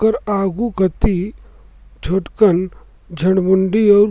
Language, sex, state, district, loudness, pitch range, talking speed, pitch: Surgujia, male, Chhattisgarh, Sarguja, -16 LUFS, 175-210 Hz, 100 wpm, 190 Hz